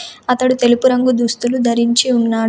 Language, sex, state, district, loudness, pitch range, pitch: Telugu, female, Telangana, Komaram Bheem, -14 LUFS, 235-255 Hz, 245 Hz